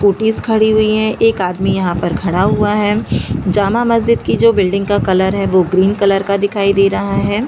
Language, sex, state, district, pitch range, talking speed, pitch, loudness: Hindi, female, Chhattisgarh, Bastar, 185-215 Hz, 215 wpm, 200 Hz, -14 LUFS